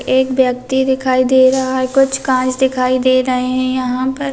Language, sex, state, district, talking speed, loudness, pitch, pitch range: Hindi, female, Bihar, Saharsa, 195 wpm, -14 LUFS, 260 Hz, 255-265 Hz